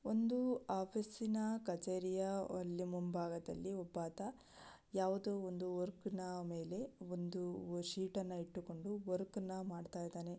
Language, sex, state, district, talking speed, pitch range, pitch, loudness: Kannada, female, Karnataka, Belgaum, 105 wpm, 180-200 Hz, 185 Hz, -43 LUFS